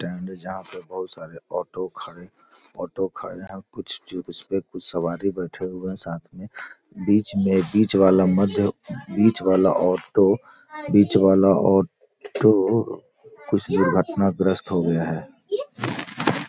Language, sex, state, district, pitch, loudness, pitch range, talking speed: Hindi, male, Bihar, Gopalganj, 95 Hz, -22 LUFS, 90-100 Hz, 125 wpm